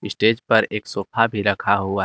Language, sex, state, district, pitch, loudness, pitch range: Hindi, male, Jharkhand, Garhwa, 105 Hz, -20 LUFS, 100-110 Hz